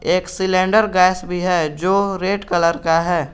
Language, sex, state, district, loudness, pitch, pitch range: Hindi, male, Jharkhand, Garhwa, -17 LUFS, 180 Hz, 170-190 Hz